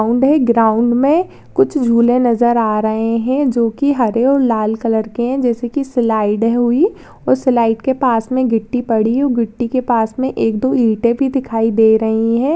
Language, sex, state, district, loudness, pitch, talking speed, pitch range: Hindi, female, Rajasthan, Nagaur, -15 LUFS, 240 Hz, 200 wpm, 225-260 Hz